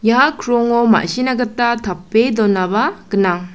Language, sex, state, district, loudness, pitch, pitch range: Garo, female, Meghalaya, South Garo Hills, -16 LUFS, 225 Hz, 195-240 Hz